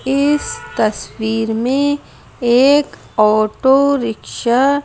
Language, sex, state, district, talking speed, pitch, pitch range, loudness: Hindi, female, Madhya Pradesh, Bhopal, 85 wpm, 260 Hz, 225-280 Hz, -15 LUFS